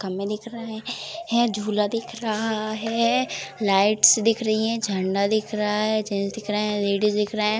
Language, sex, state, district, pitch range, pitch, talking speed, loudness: Hindi, female, Uttar Pradesh, Jalaun, 210-225 Hz, 215 Hz, 190 wpm, -23 LUFS